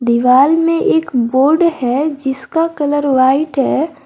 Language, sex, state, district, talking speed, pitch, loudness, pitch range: Hindi, female, Jharkhand, Garhwa, 135 wpm, 290 Hz, -13 LUFS, 265-320 Hz